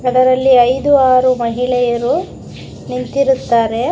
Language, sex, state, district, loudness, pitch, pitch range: Kannada, female, Karnataka, Bangalore, -13 LUFS, 250 Hz, 240-260 Hz